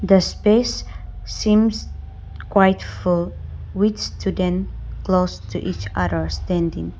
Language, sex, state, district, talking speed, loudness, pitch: English, female, Nagaland, Dimapur, 105 wpm, -21 LUFS, 180 Hz